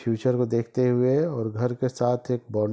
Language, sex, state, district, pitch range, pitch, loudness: Hindi, male, Bihar, East Champaran, 115-125 Hz, 125 Hz, -25 LUFS